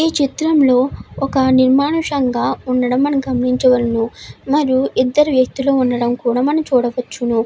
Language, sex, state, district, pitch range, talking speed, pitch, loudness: Telugu, female, Andhra Pradesh, Chittoor, 250-280 Hz, 65 wpm, 260 Hz, -16 LUFS